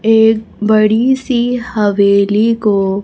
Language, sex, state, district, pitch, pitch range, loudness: Hindi, female, Chhattisgarh, Raipur, 215 Hz, 205-230 Hz, -12 LUFS